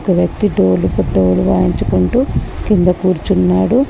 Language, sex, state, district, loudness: Telugu, female, Telangana, Komaram Bheem, -14 LUFS